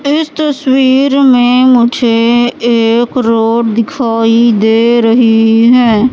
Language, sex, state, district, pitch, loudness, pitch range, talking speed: Hindi, female, Madhya Pradesh, Katni, 235 Hz, -9 LUFS, 230-260 Hz, 100 wpm